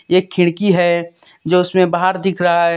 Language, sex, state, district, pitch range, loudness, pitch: Hindi, male, Jharkhand, Deoghar, 170-185 Hz, -15 LUFS, 180 Hz